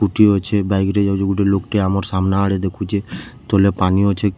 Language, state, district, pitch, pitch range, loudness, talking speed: Sambalpuri, Odisha, Sambalpur, 100 Hz, 95-105 Hz, -17 LUFS, 220 wpm